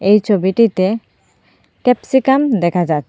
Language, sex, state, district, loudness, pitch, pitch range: Bengali, female, Assam, Hailakandi, -15 LUFS, 210 Hz, 185-250 Hz